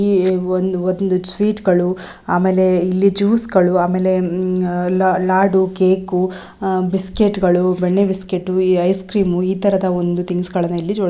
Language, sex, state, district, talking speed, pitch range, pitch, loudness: Kannada, female, Karnataka, Belgaum, 125 wpm, 180-190 Hz, 185 Hz, -17 LUFS